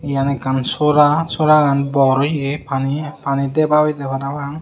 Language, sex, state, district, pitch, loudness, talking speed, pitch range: Chakma, male, Tripura, Unakoti, 140 Hz, -17 LUFS, 130 wpm, 135-150 Hz